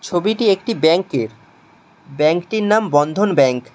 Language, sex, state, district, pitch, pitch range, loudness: Bengali, male, West Bengal, Alipurduar, 175 Hz, 150-210 Hz, -17 LUFS